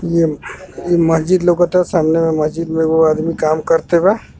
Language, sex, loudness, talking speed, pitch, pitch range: Bhojpuri, male, -15 LUFS, 165 wpm, 165 Hz, 160-175 Hz